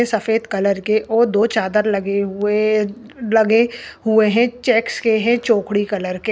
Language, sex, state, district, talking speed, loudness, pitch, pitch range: Hindi, female, Andhra Pradesh, Anantapur, 160 wpm, -17 LUFS, 220 Hz, 205-230 Hz